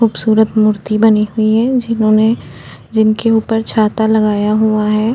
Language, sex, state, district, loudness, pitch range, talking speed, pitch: Hindi, female, Uttarakhand, Tehri Garhwal, -13 LUFS, 215-225 Hz, 140 wpm, 220 Hz